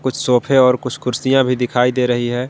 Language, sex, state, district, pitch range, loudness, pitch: Hindi, male, Jharkhand, Garhwa, 125-130 Hz, -16 LUFS, 125 Hz